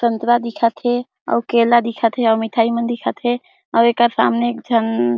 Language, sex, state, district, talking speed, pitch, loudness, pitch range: Chhattisgarhi, female, Chhattisgarh, Jashpur, 195 wpm, 235 Hz, -17 LUFS, 230-240 Hz